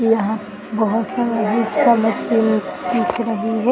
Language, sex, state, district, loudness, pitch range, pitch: Hindi, male, Bihar, East Champaran, -19 LUFS, 220-235 Hz, 225 Hz